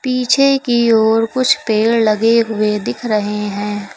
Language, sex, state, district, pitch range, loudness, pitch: Hindi, female, Uttar Pradesh, Lucknow, 210-250 Hz, -14 LUFS, 225 Hz